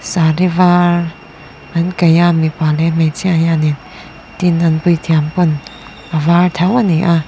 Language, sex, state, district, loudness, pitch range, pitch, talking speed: Mizo, female, Mizoram, Aizawl, -13 LUFS, 160-175 Hz, 165 Hz, 150 wpm